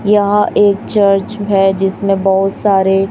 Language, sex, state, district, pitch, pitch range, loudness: Hindi, female, Chhattisgarh, Raipur, 195 Hz, 195-205 Hz, -13 LUFS